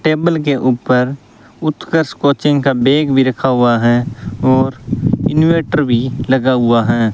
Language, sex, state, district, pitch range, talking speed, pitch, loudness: Hindi, male, Rajasthan, Bikaner, 120-150 Hz, 145 wpm, 130 Hz, -14 LUFS